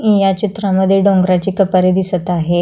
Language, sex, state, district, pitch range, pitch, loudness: Marathi, female, Maharashtra, Pune, 185-195 Hz, 190 Hz, -14 LUFS